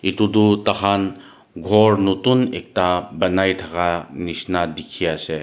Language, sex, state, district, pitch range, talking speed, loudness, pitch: Nagamese, male, Nagaland, Dimapur, 85-105 Hz, 120 wpm, -19 LUFS, 95 Hz